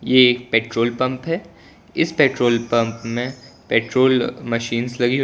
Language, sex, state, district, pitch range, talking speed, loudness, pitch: Hindi, male, Gujarat, Valsad, 115-130 Hz, 160 wpm, -19 LUFS, 125 Hz